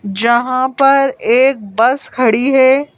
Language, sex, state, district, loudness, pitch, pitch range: Hindi, female, Madhya Pradesh, Bhopal, -13 LUFS, 255 Hz, 235-270 Hz